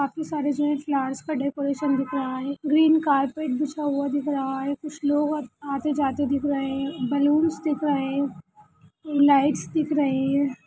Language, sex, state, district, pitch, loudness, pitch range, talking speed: Hindi, female, Bihar, Gaya, 280 Hz, -24 LUFS, 275-295 Hz, 180 wpm